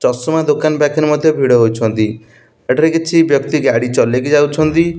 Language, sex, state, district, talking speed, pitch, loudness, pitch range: Odia, male, Odisha, Nuapada, 145 wpm, 150 Hz, -13 LUFS, 120-155 Hz